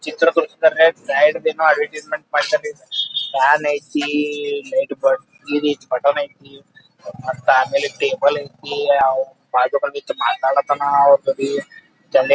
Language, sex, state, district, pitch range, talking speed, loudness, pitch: Kannada, male, Karnataka, Belgaum, 140-205 Hz, 85 wpm, -18 LUFS, 150 Hz